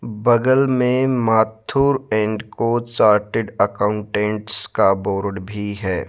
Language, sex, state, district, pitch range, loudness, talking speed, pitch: Hindi, male, Rajasthan, Jaipur, 105-120 Hz, -19 LUFS, 110 wpm, 110 Hz